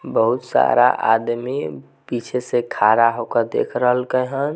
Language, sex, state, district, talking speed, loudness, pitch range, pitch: Maithili, male, Bihar, Samastipur, 160 wpm, -19 LUFS, 115-125 Hz, 120 Hz